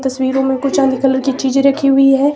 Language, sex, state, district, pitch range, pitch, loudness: Hindi, female, Himachal Pradesh, Shimla, 265-275 Hz, 270 Hz, -14 LUFS